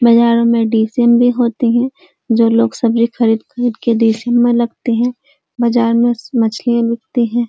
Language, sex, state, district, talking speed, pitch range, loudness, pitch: Hindi, female, Uttar Pradesh, Jyotiba Phule Nagar, 170 wpm, 230-240 Hz, -14 LUFS, 235 Hz